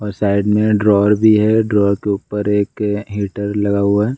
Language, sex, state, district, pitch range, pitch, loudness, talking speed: Hindi, male, Bihar, Gaya, 100-105 Hz, 105 Hz, -16 LUFS, 200 wpm